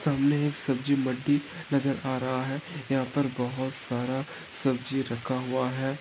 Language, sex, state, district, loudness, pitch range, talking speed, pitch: Hindi, male, Maharashtra, Pune, -29 LUFS, 130-140 Hz, 160 wpm, 135 Hz